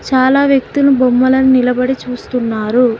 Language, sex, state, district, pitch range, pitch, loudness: Telugu, female, Telangana, Mahabubabad, 250-265 Hz, 255 Hz, -12 LUFS